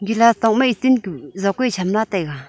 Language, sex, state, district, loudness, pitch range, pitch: Wancho, female, Arunachal Pradesh, Longding, -18 LUFS, 190-235 Hz, 220 Hz